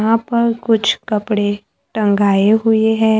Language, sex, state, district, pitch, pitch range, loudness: Hindi, male, Maharashtra, Gondia, 220 Hz, 205-225 Hz, -15 LUFS